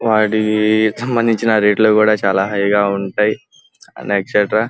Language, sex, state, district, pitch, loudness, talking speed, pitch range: Telugu, male, Andhra Pradesh, Guntur, 110 Hz, -15 LUFS, 155 wpm, 105-110 Hz